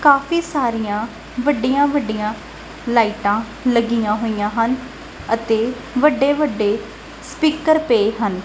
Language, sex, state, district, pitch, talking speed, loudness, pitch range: Punjabi, female, Punjab, Kapurthala, 230 Hz, 100 wpm, -19 LUFS, 215-285 Hz